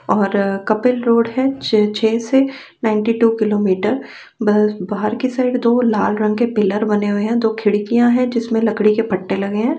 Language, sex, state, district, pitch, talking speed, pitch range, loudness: Hindi, female, Uttar Pradesh, Etah, 220 Hz, 185 wpm, 210-240 Hz, -17 LUFS